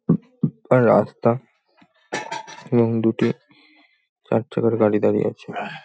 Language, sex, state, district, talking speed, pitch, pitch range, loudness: Bengali, male, West Bengal, North 24 Parganas, 70 wpm, 115 Hz, 110-135 Hz, -21 LUFS